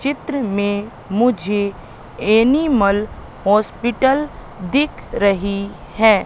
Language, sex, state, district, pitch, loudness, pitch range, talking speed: Hindi, female, Madhya Pradesh, Katni, 215 Hz, -18 LUFS, 200-265 Hz, 75 wpm